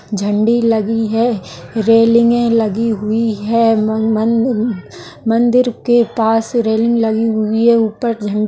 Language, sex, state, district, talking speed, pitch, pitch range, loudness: Hindi, female, Rajasthan, Nagaur, 125 wpm, 225 Hz, 220-235 Hz, -14 LUFS